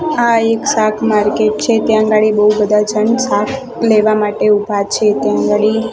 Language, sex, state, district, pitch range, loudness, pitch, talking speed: Gujarati, female, Gujarat, Gandhinagar, 210-225 Hz, -13 LUFS, 215 Hz, 170 wpm